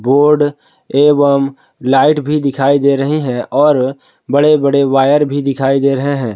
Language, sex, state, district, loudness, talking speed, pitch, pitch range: Hindi, male, Jharkhand, Palamu, -13 LUFS, 160 wpm, 140 Hz, 135-145 Hz